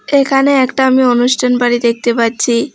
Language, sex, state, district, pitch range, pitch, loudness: Bengali, female, West Bengal, Alipurduar, 240-265 Hz, 250 Hz, -12 LUFS